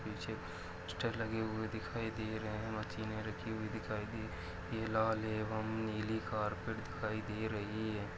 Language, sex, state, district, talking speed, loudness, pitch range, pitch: Hindi, male, Maharashtra, Dhule, 160 wpm, -40 LUFS, 105-110 Hz, 110 Hz